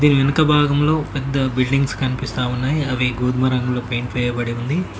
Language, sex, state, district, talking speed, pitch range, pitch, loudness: Telugu, male, Telangana, Mahabubabad, 155 wpm, 125-145 Hz, 130 Hz, -19 LUFS